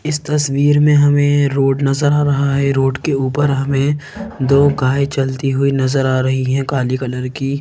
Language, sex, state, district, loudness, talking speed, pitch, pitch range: Hindi, female, Madhya Pradesh, Bhopal, -15 LUFS, 190 wpm, 140 Hz, 135-145 Hz